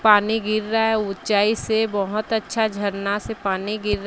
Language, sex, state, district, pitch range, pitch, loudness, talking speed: Hindi, female, Odisha, Sambalpur, 200-220 Hz, 215 Hz, -22 LUFS, 175 wpm